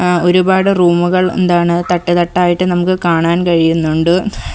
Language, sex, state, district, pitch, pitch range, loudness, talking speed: Malayalam, female, Kerala, Kollam, 175 Hz, 170-185 Hz, -12 LUFS, 105 wpm